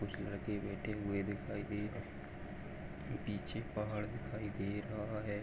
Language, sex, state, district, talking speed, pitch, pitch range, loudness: Hindi, male, Maharashtra, Dhule, 145 wpm, 105 Hz, 100-105 Hz, -42 LUFS